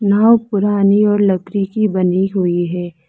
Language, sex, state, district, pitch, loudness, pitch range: Hindi, female, Arunachal Pradesh, Lower Dibang Valley, 200 Hz, -15 LUFS, 180-205 Hz